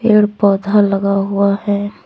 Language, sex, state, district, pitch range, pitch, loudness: Hindi, female, Jharkhand, Deoghar, 200-210 Hz, 200 Hz, -14 LUFS